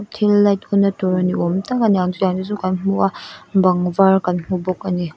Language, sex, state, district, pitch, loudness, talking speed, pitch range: Mizo, female, Mizoram, Aizawl, 190 Hz, -18 LUFS, 210 wpm, 185-200 Hz